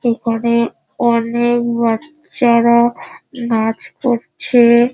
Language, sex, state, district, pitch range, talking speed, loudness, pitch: Bengali, female, West Bengal, Dakshin Dinajpur, 235-240 Hz, 60 wpm, -15 LUFS, 235 Hz